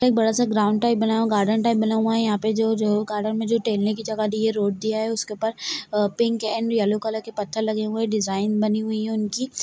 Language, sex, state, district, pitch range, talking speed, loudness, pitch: Hindi, female, Chhattisgarh, Kabirdham, 215-225 Hz, 255 wpm, -23 LUFS, 220 Hz